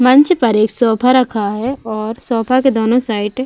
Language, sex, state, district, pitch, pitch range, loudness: Hindi, female, Uttar Pradesh, Budaun, 235 Hz, 220-255 Hz, -14 LUFS